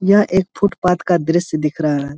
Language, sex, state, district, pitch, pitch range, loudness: Hindi, male, Bihar, Saharsa, 175 Hz, 155-190 Hz, -17 LUFS